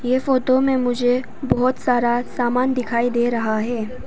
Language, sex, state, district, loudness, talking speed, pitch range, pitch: Hindi, female, Arunachal Pradesh, Papum Pare, -20 LUFS, 160 wpm, 240-255 Hz, 245 Hz